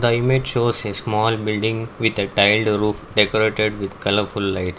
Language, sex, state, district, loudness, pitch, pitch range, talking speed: English, male, Karnataka, Bangalore, -19 LUFS, 105 Hz, 100-115 Hz, 175 wpm